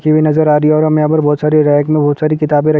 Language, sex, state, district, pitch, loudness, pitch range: Hindi, male, Chhattisgarh, Kabirdham, 155 Hz, -12 LUFS, 150-155 Hz